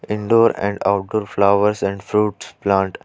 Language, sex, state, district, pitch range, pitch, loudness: Hindi, male, Jharkhand, Ranchi, 100-105 Hz, 100 Hz, -18 LUFS